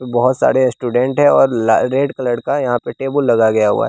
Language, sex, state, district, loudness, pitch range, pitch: Hindi, male, Bihar, West Champaran, -15 LUFS, 120-135 Hz, 125 Hz